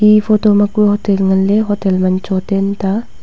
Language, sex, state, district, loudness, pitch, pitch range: Wancho, female, Arunachal Pradesh, Longding, -13 LUFS, 205 Hz, 190-210 Hz